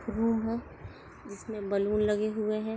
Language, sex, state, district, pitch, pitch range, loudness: Hindi, female, Maharashtra, Aurangabad, 215 Hz, 210-225 Hz, -30 LUFS